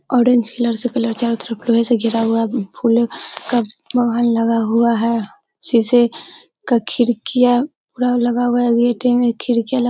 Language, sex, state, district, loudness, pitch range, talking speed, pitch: Hindi, female, Uttar Pradesh, Hamirpur, -17 LUFS, 230-245 Hz, 160 wpm, 240 Hz